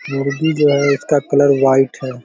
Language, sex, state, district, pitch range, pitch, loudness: Hindi, male, Bihar, Begusarai, 135-145 Hz, 140 Hz, -15 LUFS